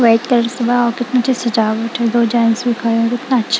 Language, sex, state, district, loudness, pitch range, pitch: Hindi, female, Punjab, Kapurthala, -15 LUFS, 230-245 Hz, 235 Hz